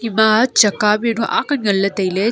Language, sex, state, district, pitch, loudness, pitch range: Wancho, female, Arunachal Pradesh, Longding, 215 Hz, -15 LUFS, 205-230 Hz